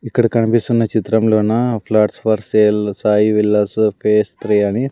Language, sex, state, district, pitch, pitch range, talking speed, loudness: Telugu, male, Andhra Pradesh, Sri Satya Sai, 110 Hz, 105-115 Hz, 135 wpm, -15 LUFS